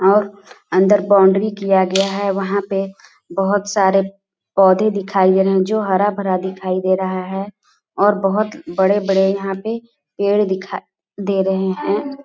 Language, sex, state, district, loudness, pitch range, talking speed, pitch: Hindi, female, Chhattisgarh, Balrampur, -17 LUFS, 190-200 Hz, 145 wpm, 195 Hz